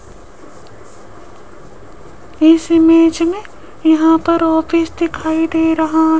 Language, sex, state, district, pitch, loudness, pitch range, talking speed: Hindi, female, Rajasthan, Jaipur, 325 Hz, -13 LUFS, 320-330 Hz, 95 wpm